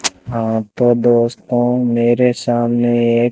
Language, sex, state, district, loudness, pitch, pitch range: Hindi, male, Rajasthan, Bikaner, -15 LUFS, 120 Hz, 115-120 Hz